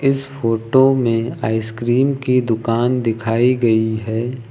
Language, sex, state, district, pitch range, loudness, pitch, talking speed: Hindi, male, Uttar Pradesh, Lucknow, 115-125 Hz, -17 LUFS, 115 Hz, 120 wpm